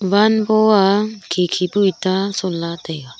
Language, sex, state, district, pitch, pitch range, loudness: Wancho, female, Arunachal Pradesh, Longding, 195 Hz, 180-205 Hz, -17 LUFS